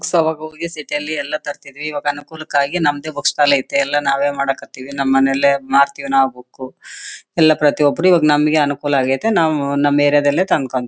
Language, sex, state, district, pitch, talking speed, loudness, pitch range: Kannada, female, Karnataka, Bellary, 145 Hz, 185 wpm, -16 LUFS, 140-155 Hz